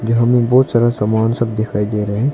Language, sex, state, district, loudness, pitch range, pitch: Hindi, male, Arunachal Pradesh, Longding, -15 LUFS, 110-120 Hz, 115 Hz